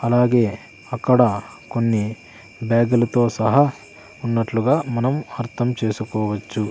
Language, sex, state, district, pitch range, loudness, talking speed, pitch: Telugu, male, Andhra Pradesh, Sri Satya Sai, 110-125 Hz, -20 LUFS, 80 wpm, 115 Hz